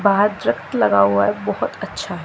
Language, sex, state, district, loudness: Hindi, female, Chandigarh, Chandigarh, -19 LUFS